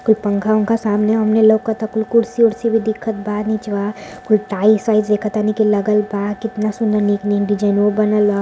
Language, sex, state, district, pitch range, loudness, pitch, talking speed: Hindi, female, Uttar Pradesh, Varanasi, 205-220 Hz, -17 LUFS, 215 Hz, 170 wpm